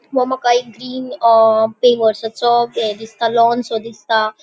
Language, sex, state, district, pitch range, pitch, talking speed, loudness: Konkani, female, Goa, North and South Goa, 225-240 Hz, 230 Hz, 150 wpm, -15 LUFS